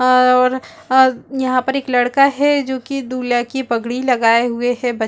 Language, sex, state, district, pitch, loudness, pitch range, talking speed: Hindi, female, Chhattisgarh, Balrampur, 255 Hz, -16 LUFS, 245-265 Hz, 175 wpm